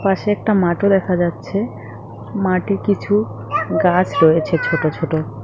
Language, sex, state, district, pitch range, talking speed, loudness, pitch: Bengali, female, West Bengal, Cooch Behar, 155-195 Hz, 120 wpm, -17 LUFS, 180 Hz